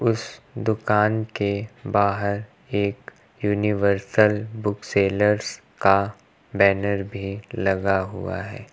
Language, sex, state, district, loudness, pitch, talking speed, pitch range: Hindi, male, Uttar Pradesh, Lucknow, -23 LUFS, 100 Hz, 95 wpm, 100-110 Hz